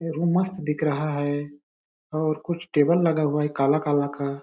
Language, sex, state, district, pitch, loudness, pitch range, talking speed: Hindi, male, Chhattisgarh, Balrampur, 150 Hz, -24 LUFS, 145-165 Hz, 190 wpm